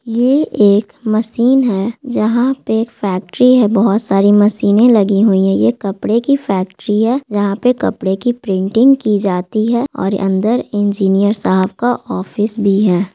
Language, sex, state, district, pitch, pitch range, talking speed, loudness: Hindi, female, Bihar, Gaya, 210 Hz, 200-240 Hz, 155 wpm, -14 LUFS